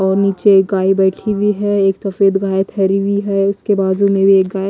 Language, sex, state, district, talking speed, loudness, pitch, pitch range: Hindi, female, Haryana, Jhajjar, 240 wpm, -14 LUFS, 195 Hz, 195-200 Hz